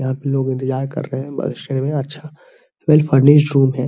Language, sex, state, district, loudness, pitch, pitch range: Hindi, male, Bihar, Araria, -17 LUFS, 135 Hz, 135-150 Hz